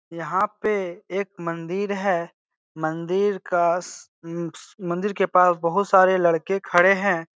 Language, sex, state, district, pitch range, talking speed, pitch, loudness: Hindi, male, Bihar, Supaul, 170-195 Hz, 140 wpm, 180 Hz, -22 LUFS